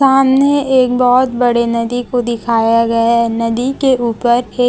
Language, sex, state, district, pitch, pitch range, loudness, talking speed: Hindi, female, Chhattisgarh, Raipur, 245 Hz, 235-260 Hz, -13 LUFS, 165 wpm